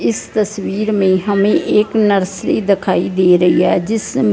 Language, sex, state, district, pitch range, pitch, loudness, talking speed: Hindi, female, Punjab, Fazilka, 185-210 Hz, 200 Hz, -14 LUFS, 155 wpm